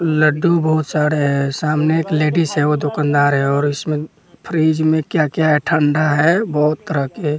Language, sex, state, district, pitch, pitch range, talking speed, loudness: Hindi, male, Bihar, West Champaran, 150 Hz, 150-155 Hz, 185 wpm, -16 LUFS